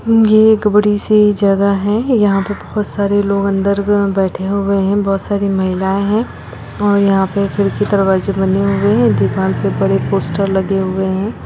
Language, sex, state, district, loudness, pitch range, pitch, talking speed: Hindi, female, Chhattisgarh, Bilaspur, -14 LUFS, 195-205 Hz, 200 Hz, 190 wpm